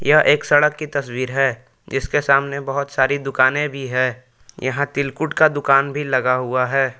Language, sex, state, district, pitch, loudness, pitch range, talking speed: Hindi, male, Jharkhand, Palamu, 135 Hz, -19 LUFS, 130-145 Hz, 180 wpm